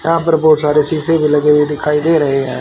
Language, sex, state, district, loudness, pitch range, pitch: Hindi, male, Haryana, Rohtak, -13 LUFS, 150-160 Hz, 150 Hz